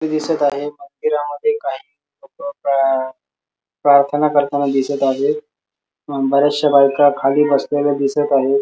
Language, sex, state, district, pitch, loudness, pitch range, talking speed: Marathi, male, Maharashtra, Sindhudurg, 145 Hz, -17 LUFS, 135-150 Hz, 110 wpm